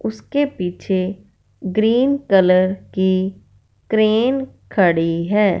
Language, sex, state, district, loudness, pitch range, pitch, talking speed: Hindi, female, Punjab, Fazilka, -18 LUFS, 180-220 Hz, 190 Hz, 85 wpm